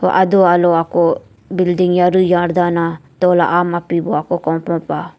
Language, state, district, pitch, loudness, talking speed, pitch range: Nyishi, Arunachal Pradesh, Papum Pare, 175 Hz, -15 LUFS, 160 wpm, 170-180 Hz